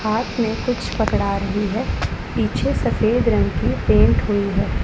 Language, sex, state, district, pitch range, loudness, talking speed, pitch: Hindi, female, Punjab, Pathankot, 205-230 Hz, -20 LUFS, 160 wpm, 215 Hz